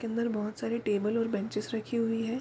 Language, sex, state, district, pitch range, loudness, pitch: Hindi, female, Bihar, Darbhanga, 210-230 Hz, -31 LUFS, 225 Hz